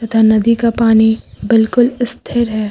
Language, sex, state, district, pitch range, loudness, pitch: Hindi, female, Uttar Pradesh, Lucknow, 220-235 Hz, -13 LUFS, 225 Hz